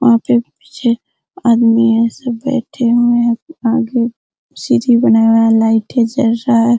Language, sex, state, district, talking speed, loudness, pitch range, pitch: Hindi, female, Bihar, Araria, 150 wpm, -13 LUFS, 230-240 Hz, 235 Hz